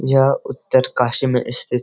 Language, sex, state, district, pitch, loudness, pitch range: Hindi, male, Uttarakhand, Uttarkashi, 125 Hz, -16 LUFS, 125-135 Hz